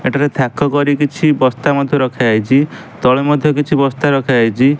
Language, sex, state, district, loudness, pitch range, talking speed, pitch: Odia, male, Odisha, Malkangiri, -14 LUFS, 130-145 Hz, 150 wpm, 140 Hz